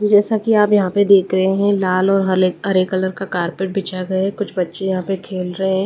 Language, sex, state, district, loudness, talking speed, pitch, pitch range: Hindi, female, Delhi, New Delhi, -17 LUFS, 245 wpm, 190 Hz, 185-200 Hz